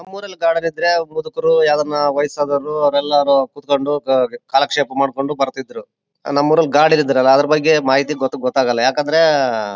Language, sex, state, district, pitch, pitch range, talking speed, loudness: Kannada, male, Karnataka, Bellary, 145 Hz, 135-155 Hz, 130 wpm, -16 LUFS